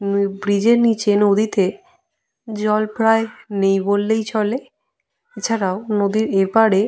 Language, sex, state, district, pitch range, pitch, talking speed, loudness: Bengali, female, Jharkhand, Jamtara, 200-225 Hz, 210 Hz, 120 wpm, -18 LUFS